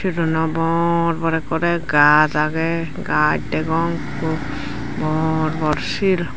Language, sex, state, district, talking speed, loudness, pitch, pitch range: Chakma, female, Tripura, Dhalai, 105 wpm, -19 LUFS, 160 Hz, 150-165 Hz